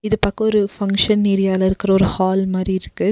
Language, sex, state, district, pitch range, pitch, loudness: Tamil, female, Tamil Nadu, Nilgiris, 190-205 Hz, 195 Hz, -18 LUFS